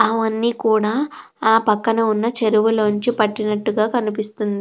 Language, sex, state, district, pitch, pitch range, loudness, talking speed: Telugu, female, Andhra Pradesh, Krishna, 220 Hz, 215-225 Hz, -19 LUFS, 105 wpm